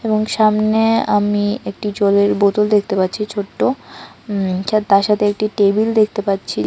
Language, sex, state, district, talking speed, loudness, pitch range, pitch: Bengali, female, Tripura, West Tripura, 145 wpm, -16 LUFS, 200-215 Hz, 205 Hz